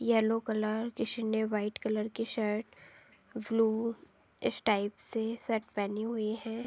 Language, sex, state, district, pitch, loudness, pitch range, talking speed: Hindi, female, Uttar Pradesh, Deoria, 225 Hz, -33 LUFS, 215-230 Hz, 135 wpm